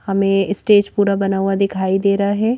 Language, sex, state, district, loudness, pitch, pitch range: Hindi, female, Madhya Pradesh, Bhopal, -16 LUFS, 200 Hz, 195-205 Hz